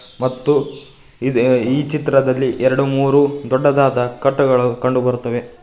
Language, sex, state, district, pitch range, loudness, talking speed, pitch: Kannada, male, Karnataka, Koppal, 125-140 Hz, -16 LUFS, 95 wpm, 130 Hz